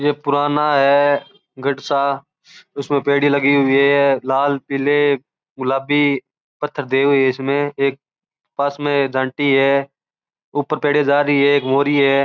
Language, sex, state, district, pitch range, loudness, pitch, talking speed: Marwari, male, Rajasthan, Churu, 140-145 Hz, -17 LUFS, 140 Hz, 140 wpm